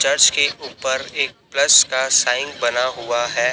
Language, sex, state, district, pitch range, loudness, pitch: Hindi, male, Chhattisgarh, Raipur, 120-130 Hz, -17 LUFS, 125 Hz